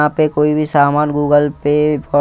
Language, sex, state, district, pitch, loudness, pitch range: Hindi, male, Punjab, Kapurthala, 150 Hz, -14 LUFS, 145-150 Hz